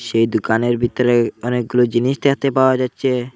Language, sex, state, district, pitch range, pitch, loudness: Bengali, male, Assam, Hailakandi, 120-130 Hz, 125 Hz, -17 LUFS